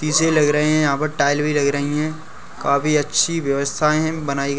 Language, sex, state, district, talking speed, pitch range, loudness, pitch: Hindi, male, Uttar Pradesh, Hamirpur, 235 wpm, 140-155 Hz, -19 LUFS, 150 Hz